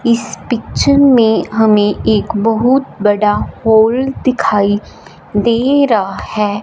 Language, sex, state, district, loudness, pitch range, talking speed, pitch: Hindi, female, Punjab, Fazilka, -13 LUFS, 210-255 Hz, 110 wpm, 225 Hz